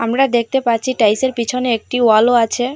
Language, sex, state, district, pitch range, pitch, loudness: Bengali, female, Assam, Hailakandi, 230-255 Hz, 240 Hz, -15 LUFS